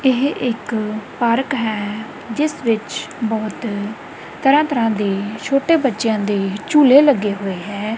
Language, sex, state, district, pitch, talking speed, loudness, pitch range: Punjabi, female, Punjab, Kapurthala, 225 Hz, 135 wpm, -18 LUFS, 210-270 Hz